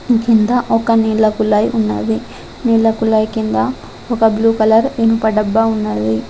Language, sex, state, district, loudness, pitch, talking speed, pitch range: Telugu, female, Telangana, Adilabad, -14 LUFS, 220 Hz, 135 wpm, 215-225 Hz